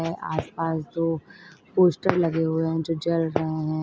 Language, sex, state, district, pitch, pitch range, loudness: Hindi, female, Uttar Pradesh, Lalitpur, 165 Hz, 160-165 Hz, -25 LUFS